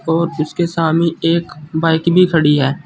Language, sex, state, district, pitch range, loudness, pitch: Hindi, male, Uttar Pradesh, Saharanpur, 155-170 Hz, -15 LUFS, 165 Hz